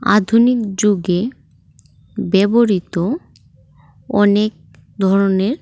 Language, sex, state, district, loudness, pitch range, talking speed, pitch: Bengali, female, Tripura, West Tripura, -16 LUFS, 175-215 Hz, 55 wpm, 195 Hz